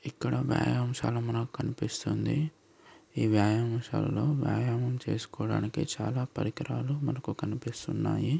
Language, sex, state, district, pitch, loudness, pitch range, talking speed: Telugu, male, Andhra Pradesh, Srikakulam, 125 Hz, -31 LUFS, 115-150 Hz, 85 wpm